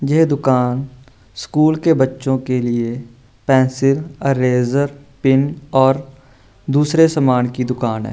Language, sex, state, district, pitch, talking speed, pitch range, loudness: Hindi, male, Bihar, Vaishali, 130 Hz, 120 wpm, 125-140 Hz, -16 LUFS